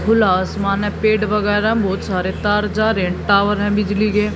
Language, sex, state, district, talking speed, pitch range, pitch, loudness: Hindi, female, Haryana, Jhajjar, 205 wpm, 200-210 Hz, 205 Hz, -17 LUFS